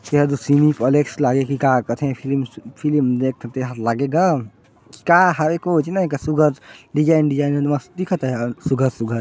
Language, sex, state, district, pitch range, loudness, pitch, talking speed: Hindi, male, Chhattisgarh, Sarguja, 130-150 Hz, -19 LUFS, 140 Hz, 180 wpm